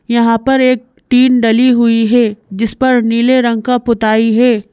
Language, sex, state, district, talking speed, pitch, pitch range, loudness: Hindi, female, Madhya Pradesh, Bhopal, 175 wpm, 235 Hz, 225-250 Hz, -11 LUFS